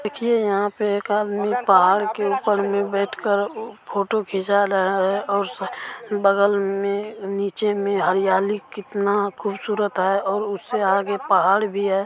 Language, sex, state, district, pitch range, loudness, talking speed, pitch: Hindi, male, Bihar, East Champaran, 195-205 Hz, -21 LUFS, 155 wpm, 200 Hz